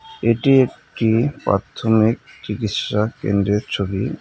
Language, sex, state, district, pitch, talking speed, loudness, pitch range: Bengali, male, West Bengal, Cooch Behar, 110 Hz, 100 wpm, -19 LUFS, 105-130 Hz